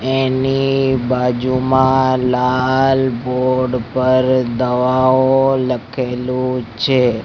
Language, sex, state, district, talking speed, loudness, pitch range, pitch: Gujarati, male, Gujarat, Gandhinagar, 65 wpm, -16 LUFS, 125-130 Hz, 130 Hz